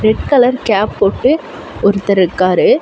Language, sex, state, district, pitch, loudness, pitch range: Tamil, female, Tamil Nadu, Chennai, 205 Hz, -13 LUFS, 195-250 Hz